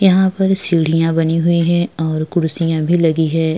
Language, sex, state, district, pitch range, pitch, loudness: Hindi, female, Bihar, Vaishali, 160-175 Hz, 165 Hz, -15 LUFS